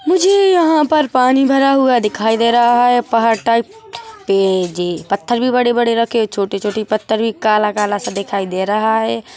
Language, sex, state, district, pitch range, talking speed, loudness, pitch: Hindi, female, Chhattisgarh, Bilaspur, 210-255 Hz, 190 wpm, -14 LUFS, 230 Hz